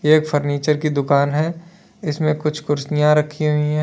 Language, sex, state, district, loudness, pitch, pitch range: Hindi, male, Uttar Pradesh, Lalitpur, -19 LUFS, 150 Hz, 150-155 Hz